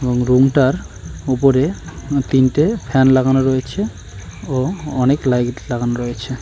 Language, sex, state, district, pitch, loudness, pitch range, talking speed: Bengali, male, West Bengal, Cooch Behar, 130 Hz, -17 LUFS, 120-135 Hz, 110 wpm